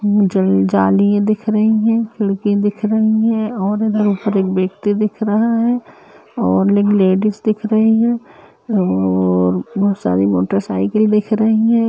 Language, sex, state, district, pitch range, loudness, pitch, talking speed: Hindi, male, Uttar Pradesh, Budaun, 190-220 Hz, -15 LUFS, 205 Hz, 140 wpm